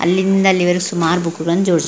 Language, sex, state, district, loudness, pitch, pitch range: Kannada, female, Karnataka, Belgaum, -16 LUFS, 175 Hz, 170-190 Hz